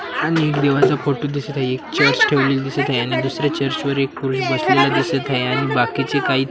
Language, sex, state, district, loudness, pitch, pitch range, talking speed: Marathi, male, Maharashtra, Washim, -18 LUFS, 140 Hz, 135-145 Hz, 195 wpm